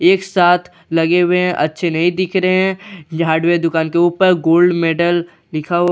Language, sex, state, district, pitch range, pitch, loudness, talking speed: Hindi, male, Bihar, Katihar, 165-180 Hz, 175 Hz, -15 LUFS, 195 wpm